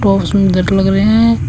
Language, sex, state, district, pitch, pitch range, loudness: Hindi, female, Uttar Pradesh, Shamli, 195 Hz, 195-210 Hz, -12 LUFS